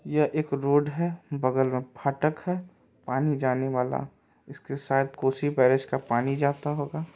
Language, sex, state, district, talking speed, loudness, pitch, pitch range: Maithili, male, Bihar, Supaul, 160 wpm, -27 LUFS, 140 Hz, 130-150 Hz